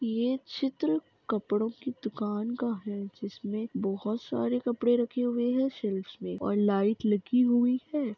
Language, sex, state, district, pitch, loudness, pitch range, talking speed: Hindi, female, Maharashtra, Solapur, 230 Hz, -30 LUFS, 210-250 Hz, 155 wpm